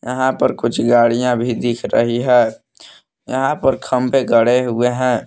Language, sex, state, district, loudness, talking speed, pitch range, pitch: Hindi, male, Jharkhand, Palamu, -16 LUFS, 160 wpm, 120-125 Hz, 120 Hz